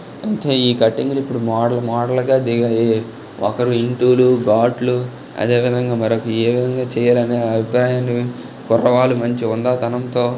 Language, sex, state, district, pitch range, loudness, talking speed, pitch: Telugu, male, Telangana, Nalgonda, 115-125 Hz, -17 LUFS, 115 wpm, 120 Hz